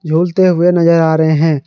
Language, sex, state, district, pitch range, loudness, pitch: Hindi, male, Jharkhand, Garhwa, 160-175 Hz, -11 LUFS, 165 Hz